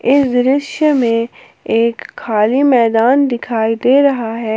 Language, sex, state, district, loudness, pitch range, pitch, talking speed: Hindi, female, Jharkhand, Palamu, -14 LUFS, 230-275 Hz, 240 Hz, 130 wpm